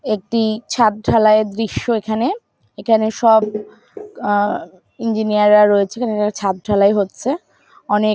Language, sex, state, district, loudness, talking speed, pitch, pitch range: Bengali, female, West Bengal, North 24 Parganas, -17 LUFS, 125 wpm, 215 Hz, 210-230 Hz